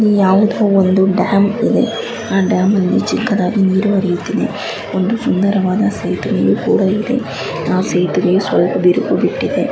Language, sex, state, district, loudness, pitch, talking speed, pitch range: Kannada, female, Karnataka, Chamarajanagar, -15 LUFS, 200 Hz, 125 wpm, 190-210 Hz